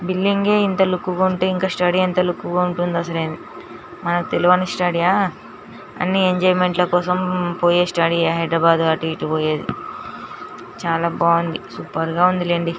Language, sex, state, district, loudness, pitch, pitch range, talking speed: Telugu, female, Andhra Pradesh, Srikakulam, -19 LUFS, 180 Hz, 170-185 Hz, 160 wpm